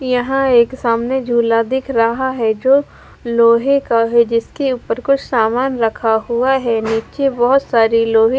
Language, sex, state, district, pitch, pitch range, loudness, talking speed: Hindi, female, Punjab, Fazilka, 235 Hz, 230-265 Hz, -15 LUFS, 155 wpm